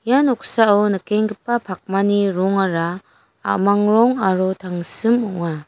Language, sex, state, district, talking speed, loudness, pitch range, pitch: Garo, female, Meghalaya, West Garo Hills, 105 wpm, -18 LUFS, 185-220 Hz, 200 Hz